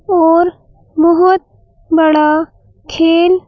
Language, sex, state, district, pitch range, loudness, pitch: Hindi, female, Madhya Pradesh, Bhopal, 320-355 Hz, -12 LUFS, 335 Hz